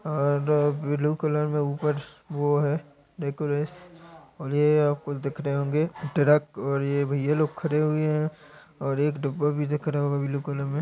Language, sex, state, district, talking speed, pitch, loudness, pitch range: Hindi, male, Chhattisgarh, Raigarh, 170 wpm, 145 Hz, -26 LUFS, 145-150 Hz